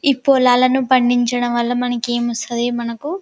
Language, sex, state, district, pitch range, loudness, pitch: Telugu, female, Telangana, Karimnagar, 240-255 Hz, -17 LUFS, 245 Hz